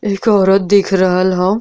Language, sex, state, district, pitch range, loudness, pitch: Bhojpuri, female, Uttar Pradesh, Deoria, 185-200 Hz, -13 LUFS, 195 Hz